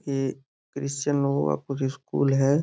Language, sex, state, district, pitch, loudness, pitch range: Hindi, male, Uttar Pradesh, Gorakhpur, 140 Hz, -26 LUFS, 135-140 Hz